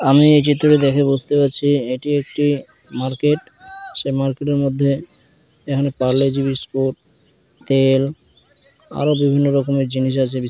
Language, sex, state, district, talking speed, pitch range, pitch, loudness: Bengali, male, West Bengal, Dakshin Dinajpur, 125 wpm, 135-145 Hz, 140 Hz, -18 LUFS